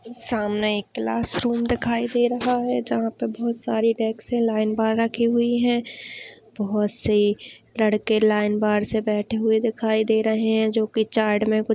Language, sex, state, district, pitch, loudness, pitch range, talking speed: Hindi, female, Maharashtra, Pune, 220 Hz, -22 LUFS, 210-235 Hz, 190 wpm